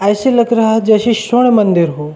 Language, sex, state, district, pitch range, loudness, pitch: Hindi, male, Uttarakhand, Uttarkashi, 200-235 Hz, -12 LUFS, 220 Hz